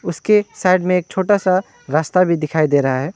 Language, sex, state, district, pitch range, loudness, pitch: Hindi, male, West Bengal, Alipurduar, 155-185 Hz, -17 LUFS, 180 Hz